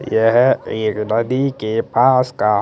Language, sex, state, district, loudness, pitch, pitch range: Hindi, male, Chandigarh, Chandigarh, -16 LUFS, 115 Hz, 110-125 Hz